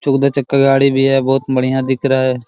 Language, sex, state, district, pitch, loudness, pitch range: Hindi, male, Bihar, Araria, 135 Hz, -14 LUFS, 130-135 Hz